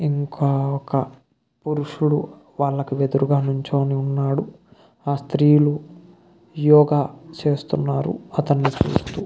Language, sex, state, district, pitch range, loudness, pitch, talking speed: Telugu, male, Karnataka, Bellary, 140-150 Hz, -21 LUFS, 145 Hz, 85 wpm